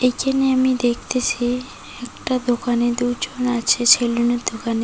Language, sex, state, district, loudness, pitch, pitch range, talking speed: Bengali, female, West Bengal, Cooch Behar, -19 LUFS, 245 Hz, 240-255 Hz, 110 wpm